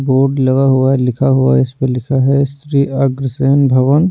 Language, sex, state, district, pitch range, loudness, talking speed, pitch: Hindi, male, Odisha, Nuapada, 130-140 Hz, -13 LUFS, 175 wpm, 135 Hz